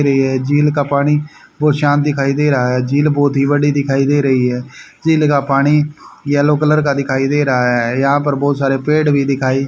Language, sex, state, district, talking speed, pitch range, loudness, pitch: Hindi, male, Haryana, Charkhi Dadri, 210 wpm, 135-145 Hz, -14 LUFS, 140 Hz